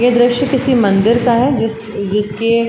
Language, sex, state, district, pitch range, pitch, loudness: Hindi, female, Uttar Pradesh, Jalaun, 220-245 Hz, 230 Hz, -14 LUFS